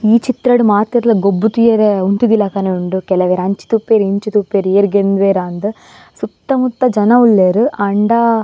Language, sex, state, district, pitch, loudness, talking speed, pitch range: Tulu, female, Karnataka, Dakshina Kannada, 210 Hz, -13 LUFS, 150 wpm, 195-230 Hz